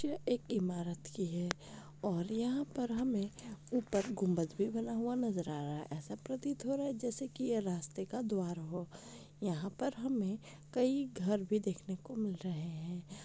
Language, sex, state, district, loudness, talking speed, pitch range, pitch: Hindi, female, Rajasthan, Nagaur, -38 LUFS, 180 wpm, 175-245 Hz, 200 Hz